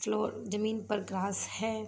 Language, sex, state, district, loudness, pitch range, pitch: Hindi, female, Jharkhand, Sahebganj, -34 LUFS, 195-215 Hz, 210 Hz